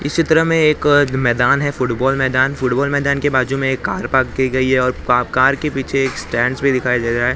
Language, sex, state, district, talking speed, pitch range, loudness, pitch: Hindi, male, Maharashtra, Mumbai Suburban, 260 wpm, 125-140 Hz, -16 LUFS, 130 Hz